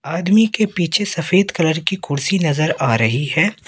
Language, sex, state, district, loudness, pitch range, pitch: Hindi, male, Madhya Pradesh, Katni, -17 LUFS, 155-195 Hz, 165 Hz